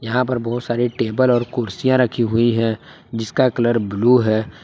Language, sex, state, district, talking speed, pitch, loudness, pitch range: Hindi, male, Jharkhand, Palamu, 180 wpm, 120 Hz, -18 LUFS, 115-125 Hz